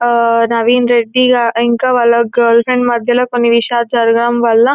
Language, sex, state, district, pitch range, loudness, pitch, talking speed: Telugu, female, Telangana, Nalgonda, 235-245 Hz, -11 LUFS, 235 Hz, 165 wpm